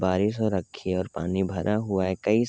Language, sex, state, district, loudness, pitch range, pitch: Hindi, male, Uttar Pradesh, Hamirpur, -27 LUFS, 95-105 Hz, 95 Hz